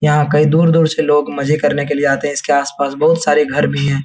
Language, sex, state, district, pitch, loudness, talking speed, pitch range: Hindi, male, Bihar, Jahanabad, 150 Hz, -14 LUFS, 265 wpm, 140-150 Hz